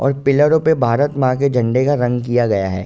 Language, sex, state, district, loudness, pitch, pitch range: Hindi, male, Uttar Pradesh, Ghazipur, -16 LUFS, 130 Hz, 120-140 Hz